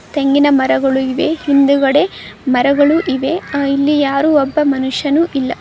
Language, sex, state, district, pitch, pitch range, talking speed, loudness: Kannada, female, Karnataka, Dharwad, 280 Hz, 270-295 Hz, 130 wpm, -14 LUFS